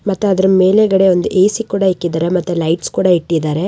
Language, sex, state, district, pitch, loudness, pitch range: Kannada, female, Karnataka, Raichur, 185 Hz, -14 LUFS, 175-195 Hz